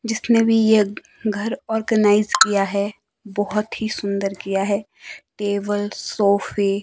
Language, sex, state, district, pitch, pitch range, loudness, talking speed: Hindi, male, Himachal Pradesh, Shimla, 205 Hz, 200-220 Hz, -20 LUFS, 130 wpm